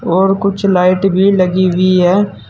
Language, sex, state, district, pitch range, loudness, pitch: Hindi, male, Uttar Pradesh, Saharanpur, 185-195 Hz, -12 LUFS, 185 Hz